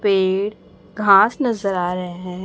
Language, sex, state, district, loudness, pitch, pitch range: Hindi, male, Chhattisgarh, Raipur, -18 LUFS, 195 Hz, 180-205 Hz